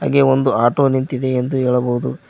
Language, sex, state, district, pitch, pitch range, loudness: Kannada, male, Karnataka, Koppal, 130 Hz, 125-135 Hz, -17 LUFS